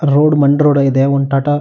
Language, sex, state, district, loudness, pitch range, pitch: Kannada, male, Karnataka, Shimoga, -12 LUFS, 140-145 Hz, 140 Hz